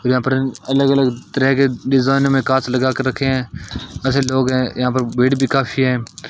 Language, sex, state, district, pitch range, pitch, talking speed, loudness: Hindi, male, Rajasthan, Bikaner, 130-135 Hz, 130 Hz, 200 wpm, -17 LUFS